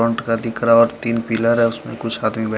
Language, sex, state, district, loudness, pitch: Hindi, male, Chandigarh, Chandigarh, -18 LUFS, 115 Hz